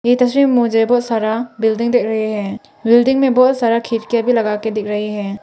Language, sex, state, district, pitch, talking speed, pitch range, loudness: Hindi, female, Arunachal Pradesh, Papum Pare, 230 Hz, 230 wpm, 215-245 Hz, -15 LUFS